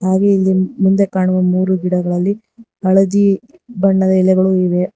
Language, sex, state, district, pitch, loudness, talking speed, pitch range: Kannada, female, Karnataka, Bangalore, 190 Hz, -14 LUFS, 120 wpm, 185-200 Hz